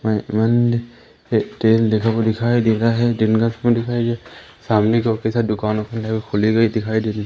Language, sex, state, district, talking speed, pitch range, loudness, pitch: Hindi, male, Madhya Pradesh, Umaria, 175 wpm, 110-115 Hz, -18 LUFS, 110 Hz